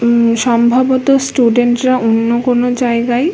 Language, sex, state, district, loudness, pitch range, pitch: Bengali, female, West Bengal, Kolkata, -12 LUFS, 235-255 Hz, 245 Hz